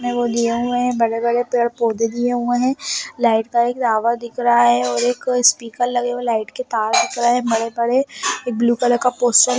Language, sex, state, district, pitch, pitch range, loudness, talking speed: Hindi, male, Bihar, Darbhanga, 240 Hz, 230-245 Hz, -18 LUFS, 215 wpm